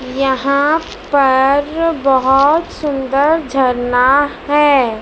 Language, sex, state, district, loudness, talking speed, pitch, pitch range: Hindi, male, Madhya Pradesh, Dhar, -13 LUFS, 70 wpm, 275 Hz, 265-295 Hz